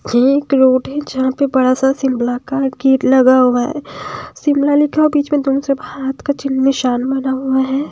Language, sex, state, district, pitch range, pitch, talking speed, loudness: Hindi, female, Himachal Pradesh, Shimla, 260-280 Hz, 265 Hz, 220 wpm, -15 LUFS